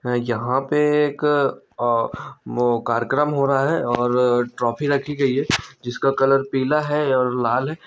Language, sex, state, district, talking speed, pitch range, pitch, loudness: Hindi, male, Chhattisgarh, Bilaspur, 160 wpm, 120-145 Hz, 135 Hz, -20 LUFS